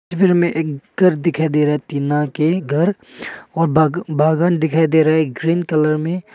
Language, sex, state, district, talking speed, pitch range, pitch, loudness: Hindi, male, Arunachal Pradesh, Papum Pare, 190 wpm, 150-175 Hz, 160 Hz, -17 LUFS